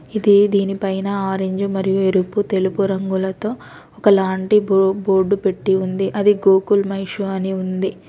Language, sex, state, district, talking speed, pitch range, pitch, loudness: Telugu, female, Telangana, Hyderabad, 125 wpm, 190-200 Hz, 195 Hz, -18 LUFS